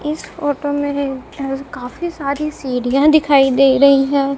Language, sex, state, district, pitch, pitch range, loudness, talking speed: Hindi, female, Punjab, Kapurthala, 280 Hz, 270-290 Hz, -16 LUFS, 135 wpm